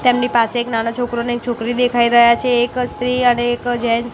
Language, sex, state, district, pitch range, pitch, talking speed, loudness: Gujarati, female, Gujarat, Gandhinagar, 235-245 Hz, 240 Hz, 245 wpm, -16 LUFS